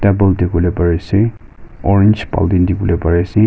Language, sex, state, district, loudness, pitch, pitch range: Nagamese, male, Nagaland, Kohima, -14 LUFS, 95 Hz, 85-100 Hz